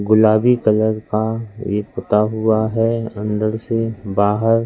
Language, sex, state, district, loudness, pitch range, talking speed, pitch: Hindi, male, Madhya Pradesh, Katni, -18 LUFS, 105-115 Hz, 130 wpm, 110 Hz